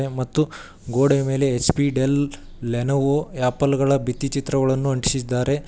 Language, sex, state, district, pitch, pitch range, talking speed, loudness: Kannada, male, Karnataka, Koppal, 135 Hz, 125-140 Hz, 115 wpm, -21 LUFS